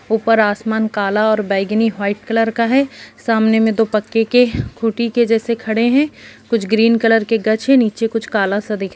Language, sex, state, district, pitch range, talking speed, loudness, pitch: Hindi, female, Chhattisgarh, Sukma, 215-230 Hz, 200 wpm, -16 LUFS, 225 Hz